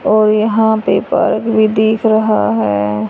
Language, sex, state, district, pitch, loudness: Hindi, female, Haryana, Charkhi Dadri, 215 Hz, -13 LUFS